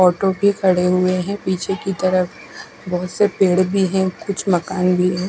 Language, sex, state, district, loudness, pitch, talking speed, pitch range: Hindi, female, Odisha, Khordha, -18 LUFS, 185 Hz, 195 wpm, 180-195 Hz